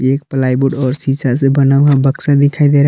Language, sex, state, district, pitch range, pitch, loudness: Hindi, male, Jharkhand, Palamu, 135-145 Hz, 135 Hz, -13 LUFS